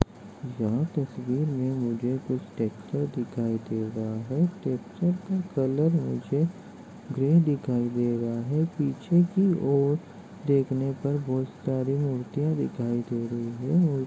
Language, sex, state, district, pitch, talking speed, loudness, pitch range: Hindi, male, Chhattisgarh, Korba, 135 Hz, 130 wpm, -27 LUFS, 120-155 Hz